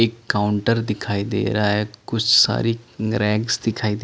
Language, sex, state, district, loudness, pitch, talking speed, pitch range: Hindi, male, Chandigarh, Chandigarh, -20 LUFS, 110 Hz, 165 wpm, 105-115 Hz